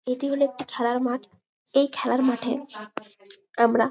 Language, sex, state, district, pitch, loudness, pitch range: Bengali, female, West Bengal, Malda, 250 Hz, -25 LUFS, 235-280 Hz